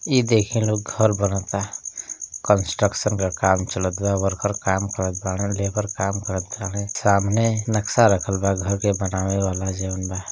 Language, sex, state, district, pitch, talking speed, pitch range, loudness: Bhojpuri, male, Uttar Pradesh, Ghazipur, 100 Hz, 150 wpm, 95-105 Hz, -22 LUFS